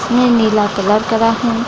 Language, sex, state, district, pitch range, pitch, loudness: Hindi, female, Bihar, Gaya, 210-235 Hz, 225 Hz, -14 LUFS